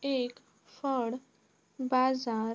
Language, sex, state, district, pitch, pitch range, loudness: Marathi, female, Maharashtra, Sindhudurg, 255 Hz, 240-260 Hz, -32 LUFS